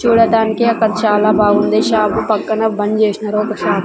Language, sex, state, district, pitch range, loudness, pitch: Telugu, female, Andhra Pradesh, Sri Satya Sai, 210-220 Hz, -14 LUFS, 215 Hz